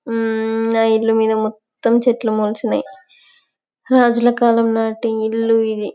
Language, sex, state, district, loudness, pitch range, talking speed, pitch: Telugu, female, Telangana, Karimnagar, -17 LUFS, 220-235 Hz, 120 wpm, 225 Hz